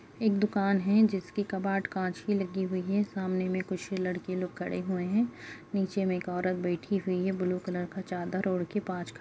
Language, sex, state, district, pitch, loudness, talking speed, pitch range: Hindi, female, Uttarakhand, Uttarkashi, 185 Hz, -31 LUFS, 215 wpm, 180-200 Hz